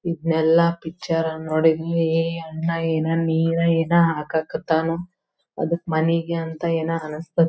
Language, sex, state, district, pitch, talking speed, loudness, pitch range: Kannada, female, Karnataka, Belgaum, 165 Hz, 120 wpm, -22 LUFS, 160-170 Hz